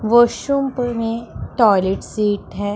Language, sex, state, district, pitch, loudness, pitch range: Hindi, female, Punjab, Pathankot, 225 Hz, -18 LUFS, 205-240 Hz